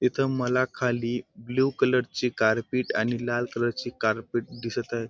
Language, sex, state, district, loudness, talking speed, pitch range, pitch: Marathi, male, Maharashtra, Dhule, -27 LUFS, 155 wpm, 115-125 Hz, 120 Hz